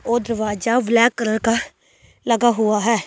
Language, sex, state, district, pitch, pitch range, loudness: Hindi, female, Delhi, New Delhi, 230 Hz, 220-235 Hz, -18 LUFS